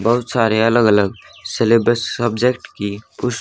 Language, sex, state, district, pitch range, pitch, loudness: Hindi, male, Haryana, Rohtak, 110-120 Hz, 115 Hz, -17 LUFS